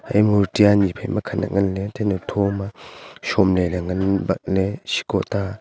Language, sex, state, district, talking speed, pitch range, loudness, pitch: Wancho, male, Arunachal Pradesh, Longding, 170 wpm, 95-105 Hz, -21 LUFS, 100 Hz